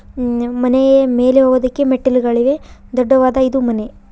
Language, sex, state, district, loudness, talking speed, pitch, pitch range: Kannada, female, Karnataka, Koppal, -14 LUFS, 115 wpm, 255 Hz, 245-265 Hz